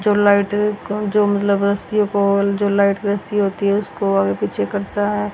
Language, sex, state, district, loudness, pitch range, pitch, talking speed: Hindi, female, Haryana, Rohtak, -18 LUFS, 200-205 Hz, 200 Hz, 170 wpm